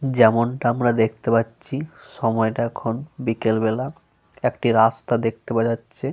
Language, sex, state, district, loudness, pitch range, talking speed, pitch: Bengali, male, Jharkhand, Sahebganj, -22 LUFS, 115-125 Hz, 125 wpm, 115 Hz